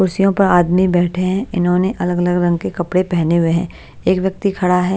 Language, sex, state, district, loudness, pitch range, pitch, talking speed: Hindi, female, Bihar, Patna, -16 LUFS, 175-190 Hz, 180 Hz, 215 wpm